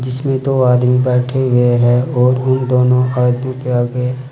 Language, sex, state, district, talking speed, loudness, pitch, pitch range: Hindi, male, Uttar Pradesh, Saharanpur, 165 wpm, -14 LUFS, 125 Hz, 125-130 Hz